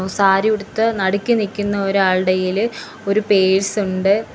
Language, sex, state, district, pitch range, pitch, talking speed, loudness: Malayalam, female, Kerala, Kollam, 190-215 Hz, 200 Hz, 95 wpm, -17 LUFS